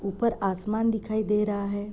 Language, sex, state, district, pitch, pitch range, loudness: Hindi, female, Uttar Pradesh, Jyotiba Phule Nagar, 210 Hz, 200-220 Hz, -27 LUFS